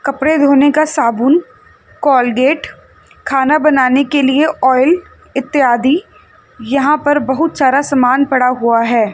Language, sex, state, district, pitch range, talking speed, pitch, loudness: Hindi, female, Chandigarh, Chandigarh, 255-300 Hz, 125 wpm, 275 Hz, -12 LUFS